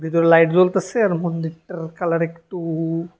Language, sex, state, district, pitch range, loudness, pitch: Bengali, male, Tripura, West Tripura, 165-180 Hz, -19 LUFS, 165 Hz